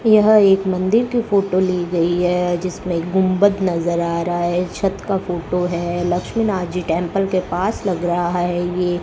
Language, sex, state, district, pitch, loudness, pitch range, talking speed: Hindi, male, Rajasthan, Bikaner, 180 Hz, -18 LUFS, 175-195 Hz, 185 wpm